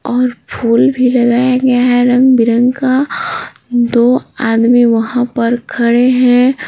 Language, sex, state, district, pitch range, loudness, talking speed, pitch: Hindi, female, Bihar, Patna, 235-255 Hz, -11 LUFS, 125 wpm, 245 Hz